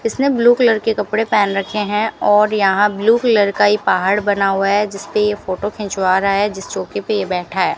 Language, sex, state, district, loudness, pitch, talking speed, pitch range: Hindi, female, Rajasthan, Bikaner, -16 LUFS, 205 Hz, 230 wpm, 195-215 Hz